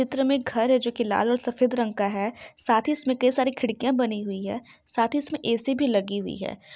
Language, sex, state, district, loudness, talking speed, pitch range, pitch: Hindi, female, Bihar, Saran, -25 LUFS, 265 wpm, 225-265 Hz, 245 Hz